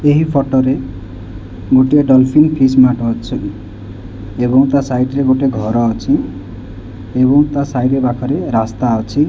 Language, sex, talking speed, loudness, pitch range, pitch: Odia, male, 135 wpm, -13 LUFS, 110-135 Hz, 125 Hz